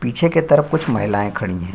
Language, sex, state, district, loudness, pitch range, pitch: Hindi, male, Bihar, Bhagalpur, -18 LUFS, 100-155 Hz, 120 Hz